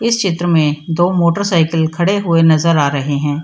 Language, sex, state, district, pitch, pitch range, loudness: Hindi, female, Bihar, Samastipur, 165 Hz, 155-175 Hz, -14 LUFS